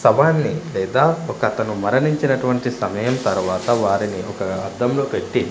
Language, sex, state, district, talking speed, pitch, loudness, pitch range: Telugu, male, Andhra Pradesh, Manyam, 120 wpm, 125 Hz, -20 LUFS, 100-140 Hz